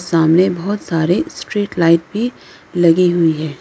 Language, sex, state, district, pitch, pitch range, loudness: Hindi, female, Arunachal Pradesh, Lower Dibang Valley, 175 Hz, 165-190 Hz, -15 LUFS